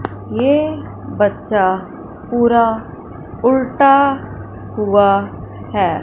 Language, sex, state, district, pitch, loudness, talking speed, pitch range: Hindi, male, Punjab, Fazilka, 235 Hz, -15 LUFS, 60 wpm, 205-270 Hz